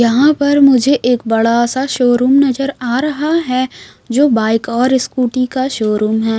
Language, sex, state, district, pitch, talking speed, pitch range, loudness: Hindi, female, Bihar, West Champaran, 255 Hz, 170 wpm, 235-275 Hz, -13 LUFS